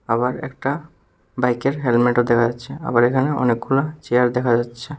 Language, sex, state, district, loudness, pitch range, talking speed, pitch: Bengali, male, Tripura, West Tripura, -20 LUFS, 120-135 Hz, 145 wpm, 125 Hz